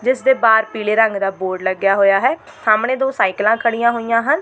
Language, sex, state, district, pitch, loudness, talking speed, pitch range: Punjabi, female, Delhi, New Delhi, 225 Hz, -16 LUFS, 215 wpm, 200-250 Hz